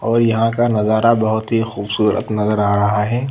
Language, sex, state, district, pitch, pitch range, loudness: Hindi, female, Madhya Pradesh, Bhopal, 110 Hz, 105-115 Hz, -16 LUFS